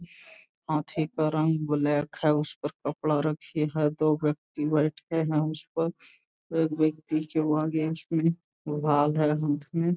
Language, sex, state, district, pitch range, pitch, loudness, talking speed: Hindi, male, Bihar, Jamui, 150-160 Hz, 155 Hz, -28 LUFS, 145 wpm